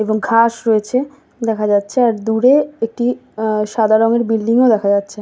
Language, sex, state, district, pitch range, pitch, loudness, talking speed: Bengali, female, West Bengal, Kolkata, 215-240 Hz, 225 Hz, -15 LUFS, 175 wpm